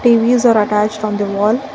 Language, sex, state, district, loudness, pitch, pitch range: English, female, Karnataka, Bangalore, -14 LUFS, 215 Hz, 210-240 Hz